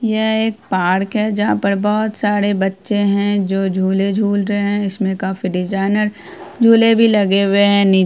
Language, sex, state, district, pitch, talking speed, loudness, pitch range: Hindi, female, Bihar, Araria, 200 Hz, 185 wpm, -16 LUFS, 195-210 Hz